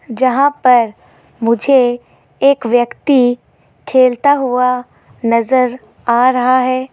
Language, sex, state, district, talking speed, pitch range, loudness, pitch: Hindi, female, Rajasthan, Jaipur, 95 wpm, 240-260 Hz, -13 LUFS, 250 Hz